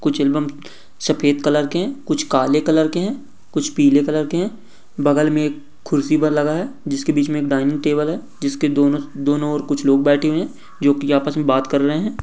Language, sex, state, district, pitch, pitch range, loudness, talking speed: Hindi, male, West Bengal, Purulia, 150 Hz, 145-155 Hz, -18 LUFS, 225 wpm